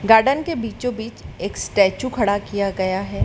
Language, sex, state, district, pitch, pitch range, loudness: Hindi, female, Madhya Pradesh, Dhar, 220 Hz, 200-245 Hz, -21 LUFS